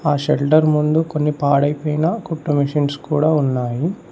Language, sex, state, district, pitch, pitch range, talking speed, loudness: Telugu, male, Telangana, Mahabubabad, 150 Hz, 145-155 Hz, 145 wpm, -18 LUFS